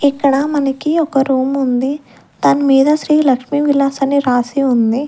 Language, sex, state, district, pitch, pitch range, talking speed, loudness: Telugu, female, Andhra Pradesh, Sri Satya Sai, 275 Hz, 260-290 Hz, 155 wpm, -14 LUFS